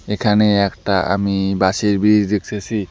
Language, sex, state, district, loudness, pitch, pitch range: Bengali, male, West Bengal, Alipurduar, -17 LUFS, 100 Hz, 100-105 Hz